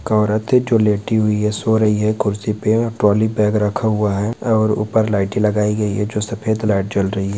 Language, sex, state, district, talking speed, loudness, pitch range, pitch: Hindi, male, Uttar Pradesh, Varanasi, 230 wpm, -17 LUFS, 105-110 Hz, 105 Hz